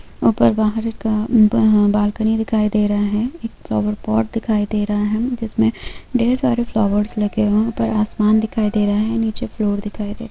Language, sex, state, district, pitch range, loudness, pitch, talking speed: Hindi, female, Bihar, East Champaran, 210-225 Hz, -18 LUFS, 215 Hz, 200 wpm